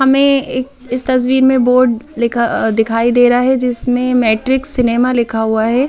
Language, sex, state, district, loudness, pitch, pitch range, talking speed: Hindi, female, Madhya Pradesh, Bhopal, -13 LUFS, 250 Hz, 235-260 Hz, 185 wpm